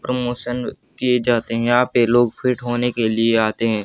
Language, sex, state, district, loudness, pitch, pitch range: Hindi, male, Haryana, Jhajjar, -19 LUFS, 120 Hz, 115-125 Hz